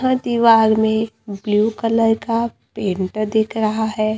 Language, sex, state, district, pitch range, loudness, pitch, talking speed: Hindi, female, Maharashtra, Gondia, 215-230 Hz, -18 LUFS, 220 Hz, 145 wpm